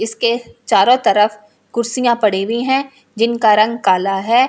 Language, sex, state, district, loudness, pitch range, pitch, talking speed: Hindi, female, Delhi, New Delhi, -15 LUFS, 210-240 Hz, 230 Hz, 160 wpm